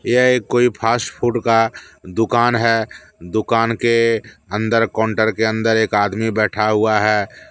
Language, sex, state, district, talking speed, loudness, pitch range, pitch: Hindi, male, Jharkhand, Deoghar, 150 wpm, -17 LUFS, 110-115 Hz, 115 Hz